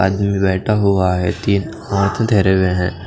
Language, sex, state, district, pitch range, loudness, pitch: Hindi, male, Odisha, Khordha, 95-100 Hz, -16 LUFS, 95 Hz